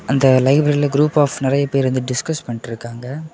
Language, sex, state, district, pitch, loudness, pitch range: Tamil, male, Tamil Nadu, Kanyakumari, 135 Hz, -17 LUFS, 130-145 Hz